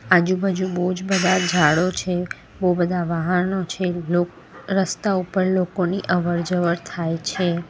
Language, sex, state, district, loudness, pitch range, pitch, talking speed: Gujarati, female, Gujarat, Valsad, -21 LUFS, 175-185 Hz, 180 Hz, 140 wpm